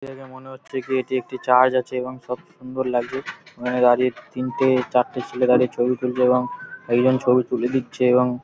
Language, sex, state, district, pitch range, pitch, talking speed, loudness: Bengali, male, West Bengal, Paschim Medinipur, 125-130 Hz, 125 Hz, 185 wpm, -21 LUFS